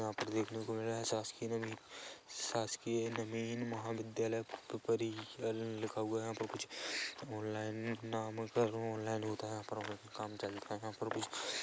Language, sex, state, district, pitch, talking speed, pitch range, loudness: Hindi, male, Chhattisgarh, Kabirdham, 110 Hz, 170 wpm, 110-115 Hz, -41 LUFS